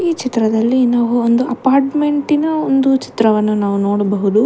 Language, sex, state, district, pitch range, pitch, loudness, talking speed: Kannada, female, Karnataka, Bangalore, 220-275 Hz, 245 Hz, -15 LUFS, 135 wpm